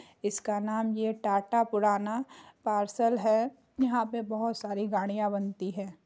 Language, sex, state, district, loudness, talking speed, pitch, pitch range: Hindi, female, Bihar, Muzaffarpur, -30 LUFS, 150 wpm, 215 Hz, 205-230 Hz